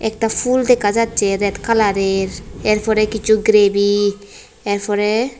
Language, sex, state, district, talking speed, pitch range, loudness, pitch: Bengali, female, Tripura, West Tripura, 120 wpm, 200-225 Hz, -16 LUFS, 215 Hz